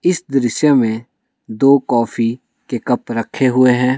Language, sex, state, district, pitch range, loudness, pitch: Hindi, male, Himachal Pradesh, Shimla, 120-140 Hz, -16 LUFS, 130 Hz